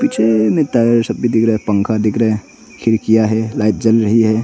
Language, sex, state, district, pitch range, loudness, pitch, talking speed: Hindi, male, Arunachal Pradesh, Longding, 110-115 Hz, -14 LUFS, 110 Hz, 135 wpm